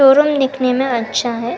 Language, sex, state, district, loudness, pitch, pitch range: Hindi, female, Karnataka, Bangalore, -16 LUFS, 255 Hz, 240-270 Hz